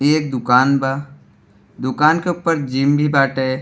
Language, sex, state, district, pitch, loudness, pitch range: Bhojpuri, male, Uttar Pradesh, Deoria, 135 Hz, -17 LUFS, 130-150 Hz